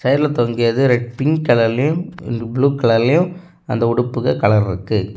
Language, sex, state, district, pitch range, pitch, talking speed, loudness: Tamil, male, Tamil Nadu, Kanyakumari, 115-140 Hz, 120 Hz, 130 wpm, -17 LUFS